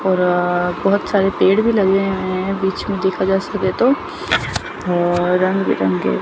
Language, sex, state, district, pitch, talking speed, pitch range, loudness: Hindi, female, Chandigarh, Chandigarh, 190 Hz, 155 wpm, 180-195 Hz, -17 LUFS